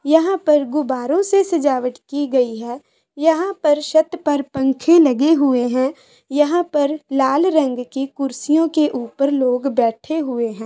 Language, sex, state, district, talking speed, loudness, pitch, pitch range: Hindi, female, Bihar, Gopalganj, 155 wpm, -18 LUFS, 285 Hz, 260-315 Hz